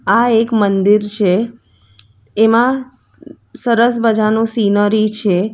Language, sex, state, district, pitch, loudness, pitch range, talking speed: Gujarati, female, Gujarat, Valsad, 215 Hz, -14 LUFS, 200-235 Hz, 95 wpm